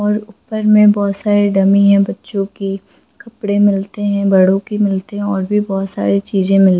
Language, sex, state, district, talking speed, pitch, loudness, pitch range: Hindi, female, Jharkhand, Jamtara, 195 wpm, 200 Hz, -14 LUFS, 195-210 Hz